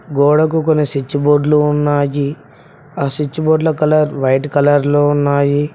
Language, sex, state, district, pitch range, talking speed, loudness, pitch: Telugu, male, Telangana, Mahabubabad, 140-150 Hz, 135 wpm, -14 LUFS, 145 Hz